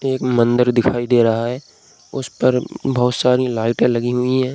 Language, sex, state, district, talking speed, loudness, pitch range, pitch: Hindi, male, Bihar, Begusarai, 185 wpm, -17 LUFS, 120-130 Hz, 125 Hz